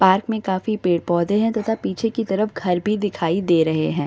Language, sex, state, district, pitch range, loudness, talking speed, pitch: Hindi, female, Bihar, Samastipur, 175-215 Hz, -21 LUFS, 220 wpm, 190 Hz